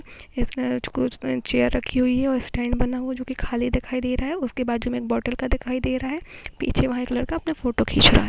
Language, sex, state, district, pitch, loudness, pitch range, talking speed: Hindi, female, Bihar, Araria, 250 Hz, -24 LUFS, 240-260 Hz, 260 wpm